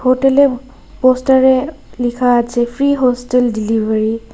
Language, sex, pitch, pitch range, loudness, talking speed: Bengali, female, 250 Hz, 240-265 Hz, -14 LUFS, 110 wpm